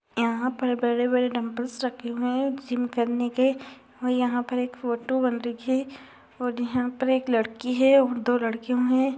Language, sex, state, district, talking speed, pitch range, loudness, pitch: Hindi, female, Uttar Pradesh, Varanasi, 175 wpm, 240-260 Hz, -25 LUFS, 250 Hz